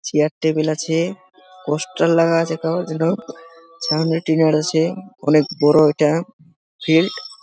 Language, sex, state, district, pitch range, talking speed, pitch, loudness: Bengali, male, West Bengal, Dakshin Dinajpur, 155-170 Hz, 120 wpm, 160 Hz, -18 LUFS